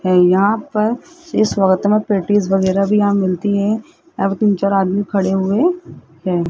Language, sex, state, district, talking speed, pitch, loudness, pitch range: Hindi, female, Rajasthan, Jaipur, 185 wpm, 200 Hz, -16 LUFS, 190-215 Hz